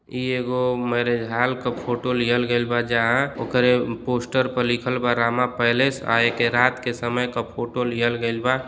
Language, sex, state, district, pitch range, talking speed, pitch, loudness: Bhojpuri, male, Uttar Pradesh, Deoria, 120-125 Hz, 185 wpm, 120 Hz, -22 LUFS